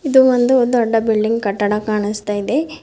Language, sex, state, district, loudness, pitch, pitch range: Kannada, female, Karnataka, Bidar, -16 LUFS, 225 Hz, 210-255 Hz